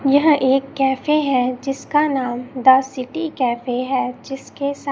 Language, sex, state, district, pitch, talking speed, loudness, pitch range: Hindi, female, Chhattisgarh, Raipur, 270 Hz, 145 wpm, -19 LUFS, 255-280 Hz